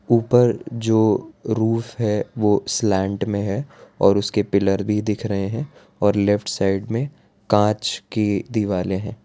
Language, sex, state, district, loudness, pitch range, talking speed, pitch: Hindi, male, Gujarat, Valsad, -21 LUFS, 100-115 Hz, 150 wpm, 105 Hz